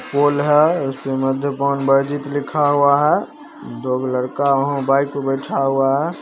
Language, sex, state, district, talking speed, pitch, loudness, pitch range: Maithili, male, Bihar, Begusarai, 135 wpm, 140 Hz, -18 LUFS, 135-145 Hz